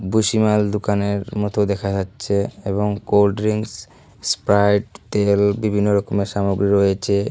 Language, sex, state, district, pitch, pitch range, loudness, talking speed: Bengali, male, Tripura, Unakoti, 100 Hz, 100-105 Hz, -19 LUFS, 105 wpm